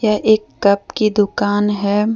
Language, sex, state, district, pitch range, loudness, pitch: Hindi, female, Jharkhand, Deoghar, 205-215 Hz, -16 LUFS, 210 Hz